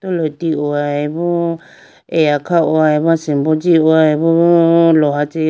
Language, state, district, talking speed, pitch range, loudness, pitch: Idu Mishmi, Arunachal Pradesh, Lower Dibang Valley, 85 wpm, 150-170 Hz, -14 LUFS, 160 Hz